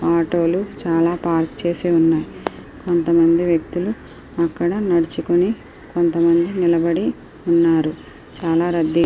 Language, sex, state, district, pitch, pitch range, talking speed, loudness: Telugu, female, Andhra Pradesh, Srikakulam, 170 Hz, 165-175 Hz, 100 wpm, -19 LUFS